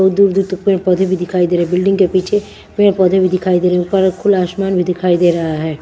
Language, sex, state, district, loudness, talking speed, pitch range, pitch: Hindi, female, Himachal Pradesh, Shimla, -14 LUFS, 300 wpm, 180-195 Hz, 185 Hz